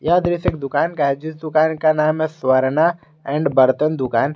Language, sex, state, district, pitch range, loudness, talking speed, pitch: Hindi, male, Jharkhand, Garhwa, 140-160 Hz, -18 LUFS, 205 wpm, 155 Hz